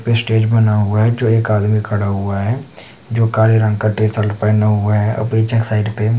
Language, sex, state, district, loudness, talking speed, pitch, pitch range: Hindi, male, Chhattisgarh, Korba, -15 LUFS, 205 wpm, 110 Hz, 105-115 Hz